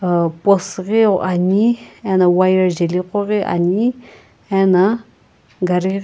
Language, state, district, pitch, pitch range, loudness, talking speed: Sumi, Nagaland, Kohima, 190 Hz, 180-205 Hz, -16 LUFS, 110 wpm